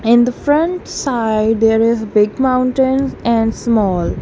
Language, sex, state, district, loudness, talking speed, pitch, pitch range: English, female, Punjab, Kapurthala, -15 LUFS, 155 wpm, 235 Hz, 225-260 Hz